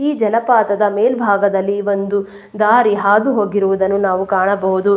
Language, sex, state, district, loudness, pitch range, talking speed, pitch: Kannada, female, Karnataka, Chamarajanagar, -15 LUFS, 195-215 Hz, 110 wpm, 200 Hz